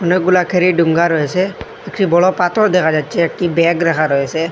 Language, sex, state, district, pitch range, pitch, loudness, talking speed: Bengali, male, Assam, Hailakandi, 165-185 Hz, 175 Hz, -14 LUFS, 160 wpm